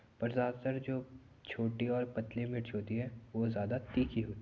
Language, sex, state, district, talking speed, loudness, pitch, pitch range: Hindi, male, Uttar Pradesh, Jyotiba Phule Nagar, 190 wpm, -37 LUFS, 120 Hz, 115-125 Hz